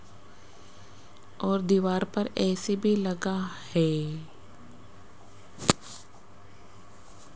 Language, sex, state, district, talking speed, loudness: Hindi, female, Rajasthan, Jaipur, 55 wpm, -28 LUFS